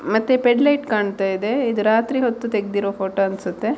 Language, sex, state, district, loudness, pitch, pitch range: Kannada, female, Karnataka, Mysore, -20 LUFS, 220 Hz, 200-245 Hz